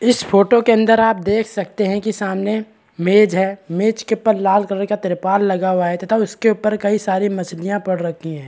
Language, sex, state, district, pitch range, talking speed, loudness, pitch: Hindi, male, Chhattisgarh, Balrampur, 190-220 Hz, 220 wpm, -17 LUFS, 200 Hz